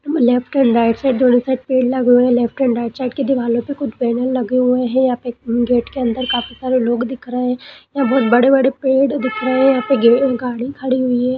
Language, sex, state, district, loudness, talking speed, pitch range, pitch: Hindi, female, Bihar, Gaya, -16 LUFS, 240 wpm, 245-265 Hz, 255 Hz